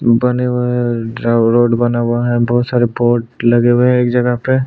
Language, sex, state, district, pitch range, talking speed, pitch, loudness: Hindi, male, Chhattisgarh, Sukma, 120-125 Hz, 205 wpm, 120 Hz, -14 LUFS